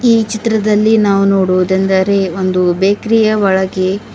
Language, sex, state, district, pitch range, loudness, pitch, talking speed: Kannada, female, Karnataka, Bidar, 190-215 Hz, -12 LUFS, 195 Hz, 100 wpm